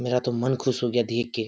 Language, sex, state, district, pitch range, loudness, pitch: Hindi, male, Bihar, Kishanganj, 120-125 Hz, -25 LUFS, 120 Hz